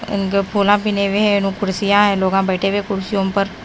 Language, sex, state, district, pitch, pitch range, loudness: Hindi, female, Himachal Pradesh, Shimla, 200 Hz, 195-205 Hz, -17 LUFS